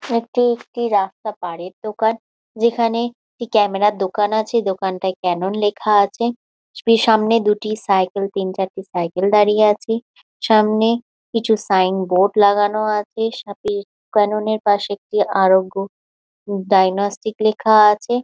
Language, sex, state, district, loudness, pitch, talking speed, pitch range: Bengali, female, West Bengal, Jhargram, -18 LUFS, 210 Hz, 125 wpm, 195-225 Hz